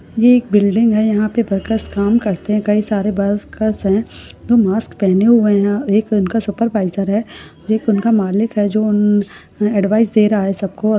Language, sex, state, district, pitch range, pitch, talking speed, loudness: Hindi, female, Rajasthan, Churu, 200-220 Hz, 210 Hz, 160 wpm, -15 LUFS